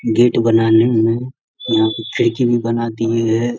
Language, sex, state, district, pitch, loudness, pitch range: Hindi, male, Bihar, Darbhanga, 115 Hz, -16 LUFS, 115-120 Hz